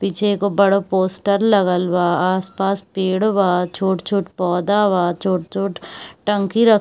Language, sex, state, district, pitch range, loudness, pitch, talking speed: Hindi, female, Bihar, Kishanganj, 185-200 Hz, -18 LUFS, 195 Hz, 140 wpm